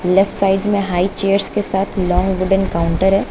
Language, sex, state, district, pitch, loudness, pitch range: Hindi, female, Uttar Pradesh, Lucknow, 195 Hz, -16 LUFS, 185-195 Hz